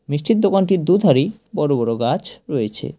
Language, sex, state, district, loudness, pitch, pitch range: Bengali, male, West Bengal, Cooch Behar, -18 LUFS, 185 Hz, 140-200 Hz